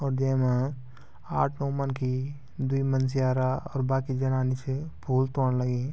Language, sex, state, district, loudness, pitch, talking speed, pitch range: Garhwali, male, Uttarakhand, Tehri Garhwal, -28 LUFS, 130 Hz, 140 wpm, 130-135 Hz